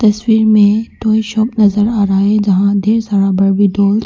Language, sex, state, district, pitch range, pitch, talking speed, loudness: Hindi, female, Arunachal Pradesh, Papum Pare, 200-220 Hz, 210 Hz, 205 wpm, -12 LUFS